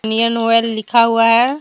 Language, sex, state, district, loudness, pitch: Hindi, female, Jharkhand, Deoghar, -14 LUFS, 230 Hz